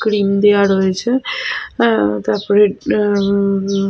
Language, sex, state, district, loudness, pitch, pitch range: Bengali, female, Jharkhand, Sahebganj, -15 LUFS, 200 Hz, 190-205 Hz